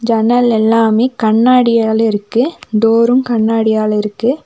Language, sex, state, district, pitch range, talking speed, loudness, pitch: Tamil, female, Tamil Nadu, Nilgiris, 220-240 Hz, 80 wpm, -12 LUFS, 225 Hz